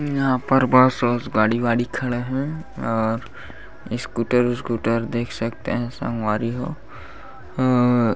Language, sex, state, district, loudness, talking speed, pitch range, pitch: Chhattisgarhi, male, Chhattisgarh, Bastar, -22 LUFS, 125 wpm, 115-130 Hz, 120 Hz